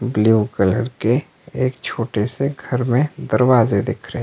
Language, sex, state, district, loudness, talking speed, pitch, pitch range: Hindi, male, Himachal Pradesh, Shimla, -19 LUFS, 155 wpm, 125 Hz, 110-130 Hz